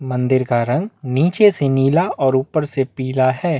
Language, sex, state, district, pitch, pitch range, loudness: Hindi, male, Chhattisgarh, Bastar, 135 Hz, 130-160 Hz, -17 LUFS